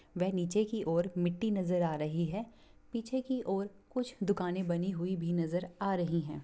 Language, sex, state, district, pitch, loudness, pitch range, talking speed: Hindi, female, Bihar, Begusarai, 185 Hz, -34 LUFS, 175-210 Hz, 195 wpm